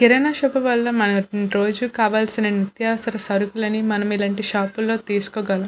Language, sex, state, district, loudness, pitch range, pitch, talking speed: Telugu, female, Andhra Pradesh, Visakhapatnam, -20 LUFS, 205-225 Hz, 215 Hz, 150 wpm